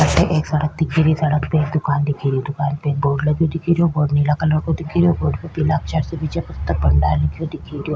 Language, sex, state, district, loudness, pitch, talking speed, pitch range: Rajasthani, female, Rajasthan, Nagaur, -19 LUFS, 150 Hz, 255 wpm, 140-160 Hz